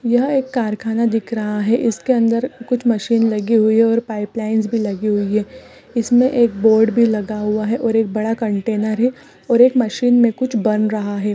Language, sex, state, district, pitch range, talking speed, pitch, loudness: Hindi, female, Chhattisgarh, Rajnandgaon, 215-240 Hz, 200 wpm, 225 Hz, -17 LUFS